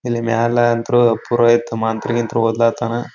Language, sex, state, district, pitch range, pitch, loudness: Kannada, male, Karnataka, Bijapur, 115-120 Hz, 115 Hz, -16 LUFS